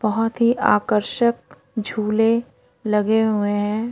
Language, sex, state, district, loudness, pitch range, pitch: Hindi, female, Odisha, Khordha, -20 LUFS, 210-230 Hz, 220 Hz